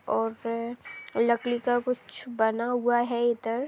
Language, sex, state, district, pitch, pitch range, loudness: Hindi, female, Bihar, Saharsa, 240 Hz, 230-245 Hz, -27 LUFS